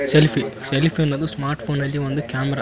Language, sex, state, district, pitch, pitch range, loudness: Kannada, male, Karnataka, Raichur, 140 Hz, 135-150 Hz, -21 LUFS